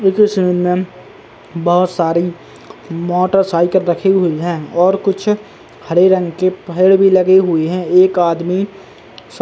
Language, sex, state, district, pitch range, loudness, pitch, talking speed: Hindi, male, Uttar Pradesh, Muzaffarnagar, 175-190 Hz, -14 LUFS, 180 Hz, 120 wpm